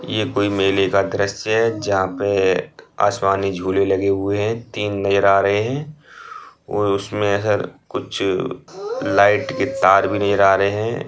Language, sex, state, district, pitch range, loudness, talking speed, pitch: Hindi, male, Bihar, Bhagalpur, 100-110 Hz, -19 LUFS, 170 wpm, 100 Hz